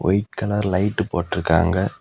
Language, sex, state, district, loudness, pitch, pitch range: Tamil, male, Tamil Nadu, Kanyakumari, -21 LUFS, 95 Hz, 90-105 Hz